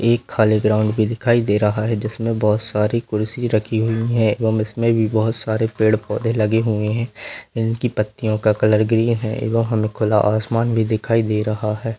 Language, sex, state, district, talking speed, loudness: Hindi, female, Bihar, Lakhisarai, 190 wpm, -19 LUFS